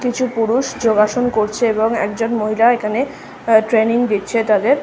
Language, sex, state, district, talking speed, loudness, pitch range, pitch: Bengali, female, West Bengal, North 24 Parganas, 135 wpm, -16 LUFS, 215-245 Hz, 230 Hz